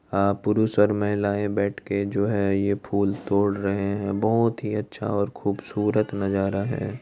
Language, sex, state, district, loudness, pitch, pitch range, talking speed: Hindi, male, Bihar, Madhepura, -24 LUFS, 100 Hz, 100-105 Hz, 170 wpm